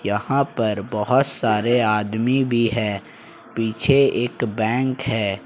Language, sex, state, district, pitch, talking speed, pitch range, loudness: Hindi, male, Jharkhand, Ranchi, 115 Hz, 120 wpm, 105-130 Hz, -20 LUFS